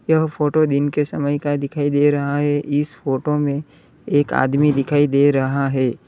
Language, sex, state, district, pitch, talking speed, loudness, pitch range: Hindi, male, Uttar Pradesh, Lalitpur, 145 Hz, 185 wpm, -19 LUFS, 140-150 Hz